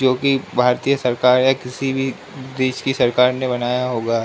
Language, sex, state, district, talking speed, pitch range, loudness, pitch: Hindi, male, Uttar Pradesh, Ghazipur, 170 wpm, 125-135 Hz, -18 LUFS, 130 Hz